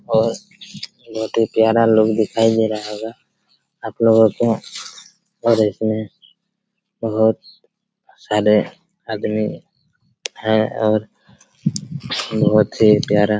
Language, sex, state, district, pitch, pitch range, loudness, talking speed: Hindi, male, Chhattisgarh, Raigarh, 110 Hz, 110-115 Hz, -18 LUFS, 95 wpm